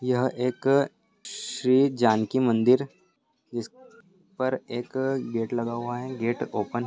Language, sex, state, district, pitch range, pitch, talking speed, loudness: Hindi, male, Bihar, Saharsa, 120-135 Hz, 130 Hz, 140 wpm, -26 LUFS